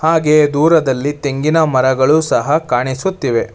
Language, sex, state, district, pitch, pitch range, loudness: Kannada, male, Karnataka, Bangalore, 145 Hz, 130-160 Hz, -14 LUFS